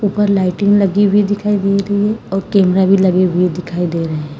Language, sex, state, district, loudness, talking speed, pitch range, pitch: Hindi, female, Karnataka, Bangalore, -14 LUFS, 230 wpm, 180-205 Hz, 195 Hz